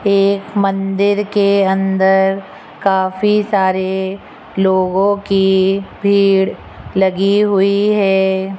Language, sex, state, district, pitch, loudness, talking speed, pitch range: Hindi, female, Rajasthan, Jaipur, 195 Hz, -14 LUFS, 85 wpm, 190-200 Hz